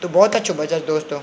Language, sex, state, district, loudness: Garhwali, male, Uttarakhand, Tehri Garhwal, -19 LUFS